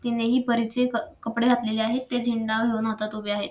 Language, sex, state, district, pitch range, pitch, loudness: Marathi, female, Maharashtra, Sindhudurg, 220-245 Hz, 230 Hz, -25 LUFS